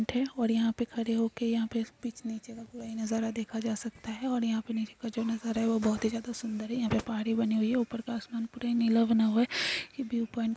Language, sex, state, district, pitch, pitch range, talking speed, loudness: Hindi, female, Chhattisgarh, Bastar, 230 Hz, 225-235 Hz, 270 wpm, -31 LUFS